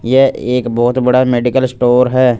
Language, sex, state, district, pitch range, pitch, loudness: Hindi, male, Punjab, Fazilka, 120-130 Hz, 125 Hz, -12 LUFS